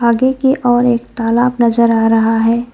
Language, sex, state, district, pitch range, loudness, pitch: Hindi, female, West Bengal, Alipurduar, 230-245 Hz, -13 LUFS, 235 Hz